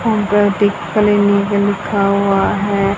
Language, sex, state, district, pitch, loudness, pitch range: Hindi, female, Haryana, Jhajjar, 205 Hz, -14 LUFS, 200-205 Hz